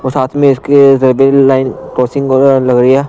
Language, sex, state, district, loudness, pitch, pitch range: Hindi, male, Punjab, Pathankot, -9 LUFS, 135 Hz, 130-140 Hz